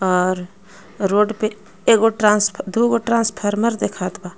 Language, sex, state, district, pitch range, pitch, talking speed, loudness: Bhojpuri, female, Jharkhand, Palamu, 190-225 Hz, 210 Hz, 135 wpm, -18 LUFS